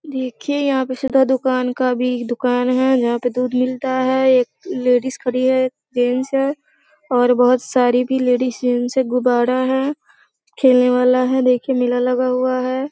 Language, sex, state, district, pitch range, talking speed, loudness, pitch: Hindi, female, Bihar, Sitamarhi, 250-260 Hz, 180 wpm, -17 LUFS, 255 Hz